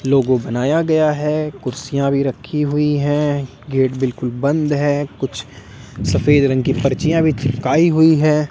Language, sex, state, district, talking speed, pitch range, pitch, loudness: Hindi, male, Delhi, New Delhi, 155 wpm, 130-150 Hz, 140 Hz, -17 LUFS